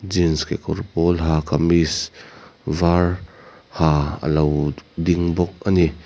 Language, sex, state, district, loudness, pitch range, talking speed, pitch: Mizo, male, Mizoram, Aizawl, -20 LUFS, 80-90 Hz, 110 wpm, 85 Hz